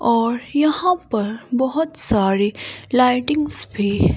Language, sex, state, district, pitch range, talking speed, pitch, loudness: Hindi, female, Himachal Pradesh, Shimla, 215-300 Hz, 100 wpm, 245 Hz, -18 LUFS